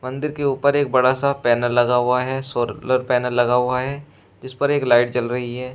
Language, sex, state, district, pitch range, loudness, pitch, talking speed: Hindi, male, Uttar Pradesh, Shamli, 120-135 Hz, -19 LUFS, 125 Hz, 240 wpm